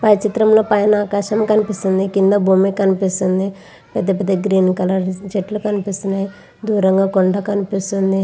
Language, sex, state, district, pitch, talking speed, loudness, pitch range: Telugu, female, Andhra Pradesh, Visakhapatnam, 195 Hz, 130 wpm, -17 LUFS, 190-205 Hz